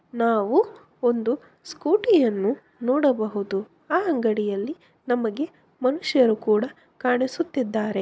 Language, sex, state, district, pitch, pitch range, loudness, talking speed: Kannada, female, Karnataka, Bellary, 245 Hz, 215-295 Hz, -24 LUFS, 75 wpm